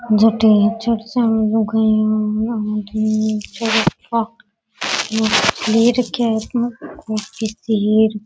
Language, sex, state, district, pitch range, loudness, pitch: Rajasthani, female, Rajasthan, Nagaur, 215-225 Hz, -17 LUFS, 220 Hz